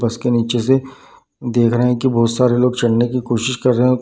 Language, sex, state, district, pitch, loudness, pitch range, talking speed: Hindi, male, Bihar, Darbhanga, 125 Hz, -16 LUFS, 120-125 Hz, 255 wpm